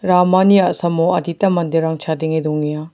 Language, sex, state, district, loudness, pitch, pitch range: Garo, male, Meghalaya, South Garo Hills, -16 LUFS, 170 Hz, 160-180 Hz